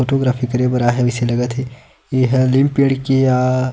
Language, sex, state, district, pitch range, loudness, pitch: Chhattisgarhi, male, Chhattisgarh, Sukma, 125-130 Hz, -16 LUFS, 130 Hz